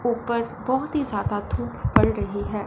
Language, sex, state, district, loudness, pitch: Hindi, male, Punjab, Fazilka, -24 LUFS, 205 Hz